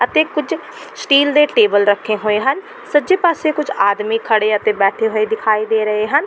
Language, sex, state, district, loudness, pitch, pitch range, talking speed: Punjabi, female, Delhi, New Delhi, -15 LUFS, 225 Hz, 215-305 Hz, 190 wpm